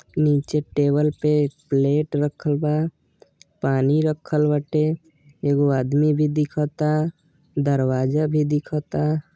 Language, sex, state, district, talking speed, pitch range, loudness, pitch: Bhojpuri, male, Uttar Pradesh, Deoria, 100 wpm, 145-155 Hz, -22 LUFS, 150 Hz